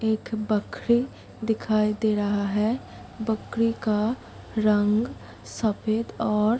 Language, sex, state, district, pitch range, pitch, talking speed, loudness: Hindi, female, Bihar, Kishanganj, 210-225 Hz, 220 Hz, 110 wpm, -26 LUFS